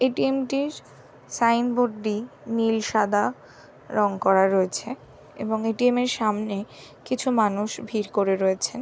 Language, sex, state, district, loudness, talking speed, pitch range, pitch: Bengali, female, West Bengal, Jhargram, -24 LUFS, 135 wpm, 205-245 Hz, 220 Hz